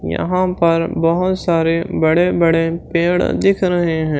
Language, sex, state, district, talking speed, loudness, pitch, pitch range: Hindi, male, Chhattisgarh, Raipur, 145 wpm, -16 LUFS, 170 Hz, 165-180 Hz